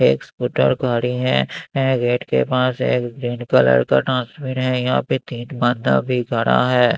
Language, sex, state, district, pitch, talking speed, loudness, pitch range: Hindi, male, Maharashtra, Mumbai Suburban, 125 Hz, 180 wpm, -19 LUFS, 120-130 Hz